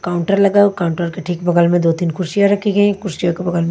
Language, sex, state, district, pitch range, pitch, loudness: Hindi, female, Maharashtra, Washim, 170-200 Hz, 175 Hz, -16 LUFS